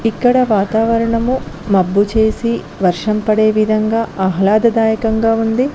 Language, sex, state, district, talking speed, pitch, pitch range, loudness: Telugu, female, Telangana, Mahabubabad, 105 wpm, 220 Hz, 210-230 Hz, -15 LUFS